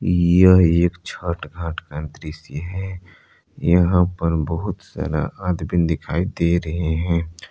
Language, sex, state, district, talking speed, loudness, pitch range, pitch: Hindi, male, Jharkhand, Palamu, 130 wpm, -20 LUFS, 80-90 Hz, 85 Hz